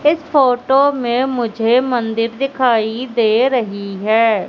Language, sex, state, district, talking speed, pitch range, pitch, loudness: Hindi, female, Madhya Pradesh, Katni, 120 wpm, 225-265 Hz, 245 Hz, -16 LUFS